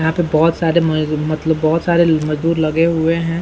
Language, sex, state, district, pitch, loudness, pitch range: Hindi, male, Bihar, Saran, 160 Hz, -16 LUFS, 155-165 Hz